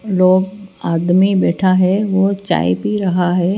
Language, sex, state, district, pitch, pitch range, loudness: Hindi, female, Himachal Pradesh, Shimla, 185 Hz, 180-195 Hz, -15 LUFS